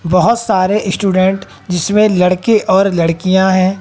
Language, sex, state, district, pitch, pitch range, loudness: Hindi, female, Haryana, Jhajjar, 190 Hz, 180-200 Hz, -12 LUFS